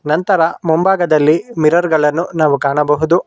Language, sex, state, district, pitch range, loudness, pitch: Kannada, male, Karnataka, Bangalore, 150-175 Hz, -14 LUFS, 160 Hz